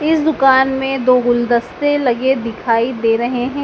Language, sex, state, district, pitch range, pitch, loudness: Hindi, female, Madhya Pradesh, Dhar, 240-270 Hz, 255 Hz, -15 LUFS